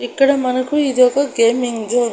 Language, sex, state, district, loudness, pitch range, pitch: Telugu, female, Andhra Pradesh, Annamaya, -16 LUFS, 240-275 Hz, 250 Hz